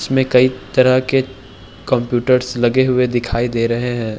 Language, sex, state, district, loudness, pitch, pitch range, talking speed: Hindi, male, Uttar Pradesh, Hamirpur, -16 LUFS, 125 Hz, 115-130 Hz, 160 wpm